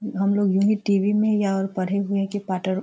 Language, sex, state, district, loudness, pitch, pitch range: Hindi, female, Bihar, Sitamarhi, -22 LUFS, 200 Hz, 195-205 Hz